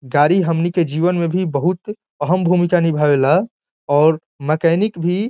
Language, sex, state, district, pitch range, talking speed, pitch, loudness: Bhojpuri, male, Bihar, Saran, 155-185 Hz, 160 wpm, 175 Hz, -17 LUFS